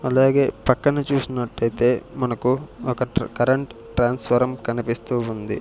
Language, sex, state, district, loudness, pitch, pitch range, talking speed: Telugu, male, Andhra Pradesh, Sri Satya Sai, -22 LUFS, 125 Hz, 120-130 Hz, 95 wpm